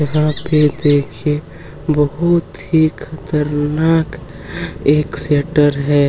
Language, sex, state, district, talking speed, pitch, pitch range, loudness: Hindi, male, Chhattisgarh, Kabirdham, 90 wpm, 150 Hz, 145-155 Hz, -16 LUFS